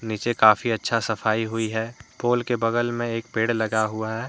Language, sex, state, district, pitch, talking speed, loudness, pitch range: Hindi, male, Jharkhand, Deoghar, 115 Hz, 210 wpm, -23 LUFS, 110-120 Hz